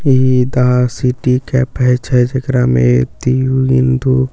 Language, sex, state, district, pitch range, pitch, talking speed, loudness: Maithili, male, Bihar, Katihar, 125-130 Hz, 130 Hz, 140 wpm, -13 LUFS